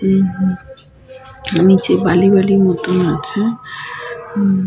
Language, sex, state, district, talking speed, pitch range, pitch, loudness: Bengali, female, West Bengal, Malda, 105 wpm, 185-210 Hz, 190 Hz, -14 LUFS